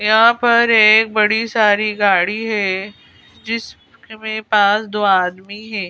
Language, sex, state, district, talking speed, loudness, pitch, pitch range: Hindi, female, Madhya Pradesh, Bhopal, 130 wpm, -15 LUFS, 215 Hz, 205-225 Hz